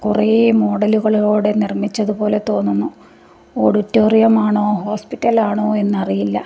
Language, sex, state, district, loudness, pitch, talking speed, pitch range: Malayalam, female, Kerala, Kasaragod, -16 LUFS, 210 Hz, 110 wpm, 205-215 Hz